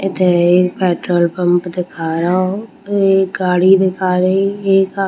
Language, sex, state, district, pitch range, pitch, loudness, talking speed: Hindi, female, Bihar, Darbhanga, 180-195 Hz, 185 Hz, -14 LUFS, 165 wpm